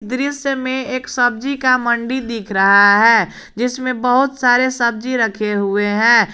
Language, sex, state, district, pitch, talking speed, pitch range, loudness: Hindi, male, Jharkhand, Garhwa, 245 Hz, 150 wpm, 220-255 Hz, -15 LUFS